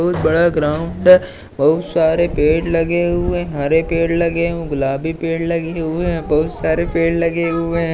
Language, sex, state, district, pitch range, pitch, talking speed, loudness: Hindi, male, Madhya Pradesh, Katni, 160-170 Hz, 165 Hz, 175 wpm, -17 LUFS